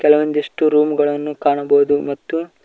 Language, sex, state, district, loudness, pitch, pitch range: Kannada, male, Karnataka, Koppal, -17 LUFS, 150 Hz, 145-150 Hz